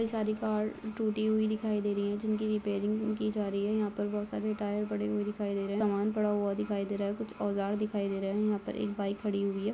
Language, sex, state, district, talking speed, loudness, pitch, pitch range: Hindi, female, Jharkhand, Jamtara, 285 wpm, -32 LUFS, 210 Hz, 205-215 Hz